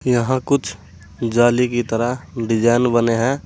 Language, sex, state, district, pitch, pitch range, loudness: Hindi, male, Uttar Pradesh, Saharanpur, 120 Hz, 115-125 Hz, -18 LUFS